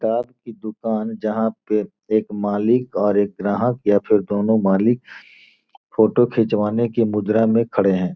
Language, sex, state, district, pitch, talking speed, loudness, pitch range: Hindi, male, Bihar, Gopalganj, 110 Hz, 155 wpm, -19 LUFS, 105-115 Hz